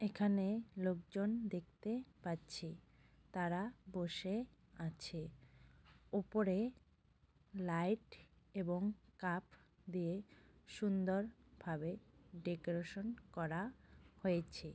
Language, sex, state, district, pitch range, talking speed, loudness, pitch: Bengali, female, West Bengal, North 24 Parganas, 170-205 Hz, 75 wpm, -43 LUFS, 185 Hz